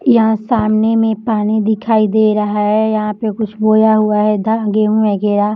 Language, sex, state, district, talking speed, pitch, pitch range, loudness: Hindi, female, Bihar, Jahanabad, 195 wpm, 215 Hz, 210-220 Hz, -14 LUFS